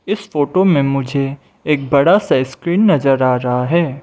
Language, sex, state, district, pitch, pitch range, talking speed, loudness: Hindi, male, Mizoram, Aizawl, 140 Hz, 135-180 Hz, 180 wpm, -15 LUFS